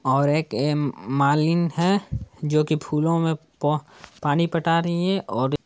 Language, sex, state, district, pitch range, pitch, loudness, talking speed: Hindi, male, Bihar, Saran, 145-170 Hz, 150 Hz, -23 LUFS, 160 wpm